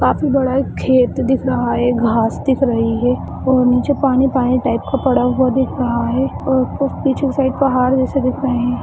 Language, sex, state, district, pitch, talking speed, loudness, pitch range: Hindi, female, Bihar, Madhepura, 260 Hz, 205 wpm, -16 LUFS, 245-265 Hz